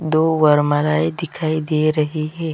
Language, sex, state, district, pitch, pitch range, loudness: Hindi, female, Chhattisgarh, Sukma, 155 Hz, 150-160 Hz, -18 LUFS